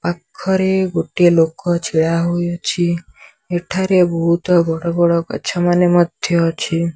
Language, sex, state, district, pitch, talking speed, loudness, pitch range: Odia, male, Odisha, Sambalpur, 175 Hz, 85 wpm, -16 LUFS, 170-175 Hz